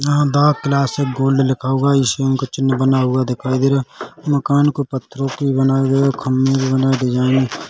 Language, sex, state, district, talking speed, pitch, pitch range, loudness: Hindi, male, Chhattisgarh, Rajnandgaon, 210 wpm, 135 Hz, 130-140 Hz, -17 LUFS